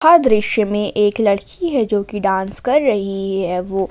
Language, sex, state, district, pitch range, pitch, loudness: Hindi, female, Jharkhand, Ranchi, 195-225 Hz, 205 Hz, -17 LUFS